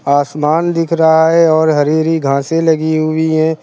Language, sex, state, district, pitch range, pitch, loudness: Hindi, male, Uttar Pradesh, Lucknow, 155-165 Hz, 160 Hz, -12 LUFS